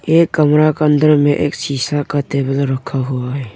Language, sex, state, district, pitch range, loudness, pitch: Hindi, male, Arunachal Pradesh, Longding, 135-150 Hz, -15 LUFS, 145 Hz